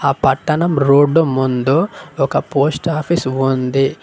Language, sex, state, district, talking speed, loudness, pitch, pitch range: Telugu, male, Telangana, Mahabubabad, 120 wpm, -16 LUFS, 140 Hz, 135-165 Hz